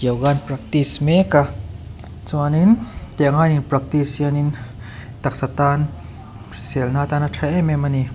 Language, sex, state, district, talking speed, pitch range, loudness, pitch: Mizo, male, Mizoram, Aizawl, 160 wpm, 115-145 Hz, -19 LUFS, 140 Hz